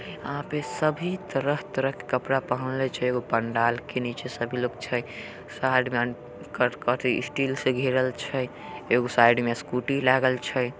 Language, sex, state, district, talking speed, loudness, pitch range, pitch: Angika, male, Bihar, Samastipur, 160 wpm, -26 LUFS, 120-135 Hz, 125 Hz